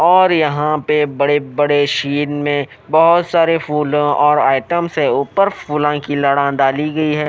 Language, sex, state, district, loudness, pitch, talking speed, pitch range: Hindi, male, Odisha, Nuapada, -15 LUFS, 150 Hz, 165 wpm, 145-155 Hz